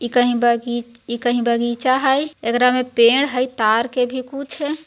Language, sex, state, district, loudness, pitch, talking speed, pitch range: Hindi, female, Bihar, Jahanabad, -18 LUFS, 245 Hz, 185 wpm, 235-260 Hz